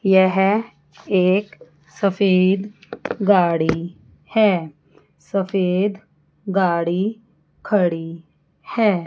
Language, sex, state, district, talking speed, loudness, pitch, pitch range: Hindi, female, Chandigarh, Chandigarh, 60 wpm, -19 LUFS, 185 Hz, 165-200 Hz